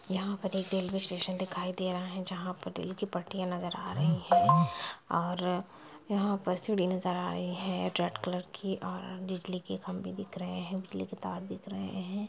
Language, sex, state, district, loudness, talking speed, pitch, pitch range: Hindi, female, Bihar, Sitamarhi, -33 LUFS, 205 wpm, 180 Hz, 175-190 Hz